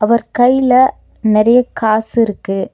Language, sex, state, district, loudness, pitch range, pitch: Tamil, female, Tamil Nadu, Nilgiris, -13 LUFS, 215-250 Hz, 230 Hz